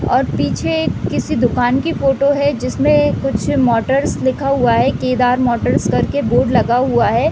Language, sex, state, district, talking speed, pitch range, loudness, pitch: Hindi, female, Uttar Pradesh, Deoria, 180 wpm, 245-280 Hz, -15 LUFS, 260 Hz